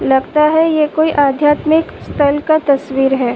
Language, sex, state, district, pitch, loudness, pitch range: Hindi, female, Uttar Pradesh, Muzaffarnagar, 295 Hz, -13 LUFS, 270-310 Hz